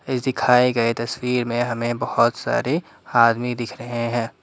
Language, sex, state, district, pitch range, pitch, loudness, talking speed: Hindi, male, Assam, Kamrup Metropolitan, 115-125 Hz, 120 Hz, -21 LUFS, 160 wpm